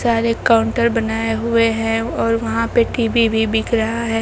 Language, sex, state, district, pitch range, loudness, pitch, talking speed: Hindi, female, Bihar, Kaimur, 225-230 Hz, -17 LUFS, 230 Hz, 185 wpm